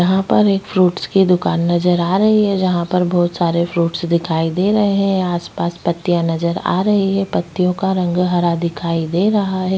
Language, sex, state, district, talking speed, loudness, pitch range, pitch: Hindi, female, Chhattisgarh, Bastar, 200 wpm, -16 LUFS, 170-190 Hz, 180 Hz